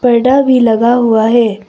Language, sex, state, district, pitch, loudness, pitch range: Hindi, female, Arunachal Pradesh, Papum Pare, 235 Hz, -10 LUFS, 225-245 Hz